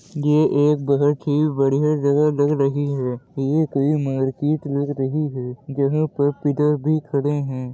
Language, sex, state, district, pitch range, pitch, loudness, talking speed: Hindi, male, Uttar Pradesh, Jyotiba Phule Nagar, 140-150 Hz, 145 Hz, -20 LUFS, 155 wpm